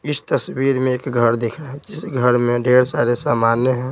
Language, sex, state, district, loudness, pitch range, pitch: Hindi, male, Bihar, Patna, -18 LUFS, 120-135 Hz, 125 Hz